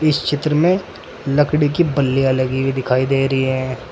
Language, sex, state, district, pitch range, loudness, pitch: Hindi, male, Uttar Pradesh, Saharanpur, 130-150 Hz, -17 LUFS, 135 Hz